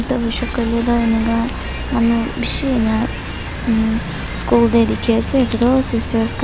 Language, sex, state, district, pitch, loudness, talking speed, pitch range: Nagamese, female, Nagaland, Dimapur, 235 Hz, -18 LUFS, 150 wpm, 230-240 Hz